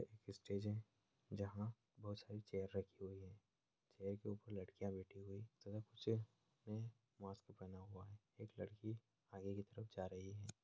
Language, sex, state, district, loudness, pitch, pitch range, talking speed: Hindi, male, Bihar, Bhagalpur, -52 LUFS, 105 Hz, 100-115 Hz, 160 wpm